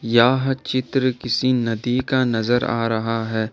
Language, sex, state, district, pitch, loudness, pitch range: Hindi, male, Jharkhand, Ranchi, 120 Hz, -20 LUFS, 115-130 Hz